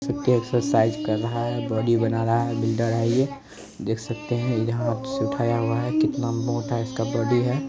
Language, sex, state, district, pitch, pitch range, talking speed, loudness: Hindi, male, Bihar, Araria, 115 Hz, 115-125 Hz, 180 wpm, -24 LUFS